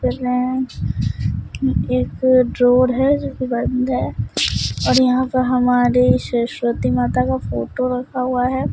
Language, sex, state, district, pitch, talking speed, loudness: Hindi, female, Bihar, Katihar, 250 Hz, 125 wpm, -18 LUFS